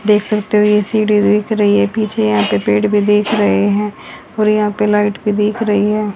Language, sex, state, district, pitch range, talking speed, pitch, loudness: Hindi, female, Haryana, Jhajjar, 205-210 Hz, 245 wpm, 210 Hz, -14 LUFS